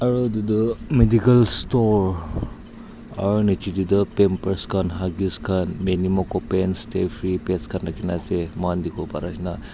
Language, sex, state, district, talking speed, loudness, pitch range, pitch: Nagamese, male, Nagaland, Dimapur, 155 wpm, -21 LUFS, 90-105 Hz, 95 Hz